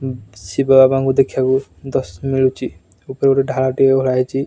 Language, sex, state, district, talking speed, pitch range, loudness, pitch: Odia, male, Odisha, Nuapada, 145 wpm, 130-135 Hz, -16 LUFS, 130 Hz